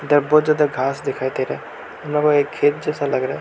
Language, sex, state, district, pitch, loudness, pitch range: Hindi, male, Arunachal Pradesh, Lower Dibang Valley, 145 Hz, -19 LUFS, 140-150 Hz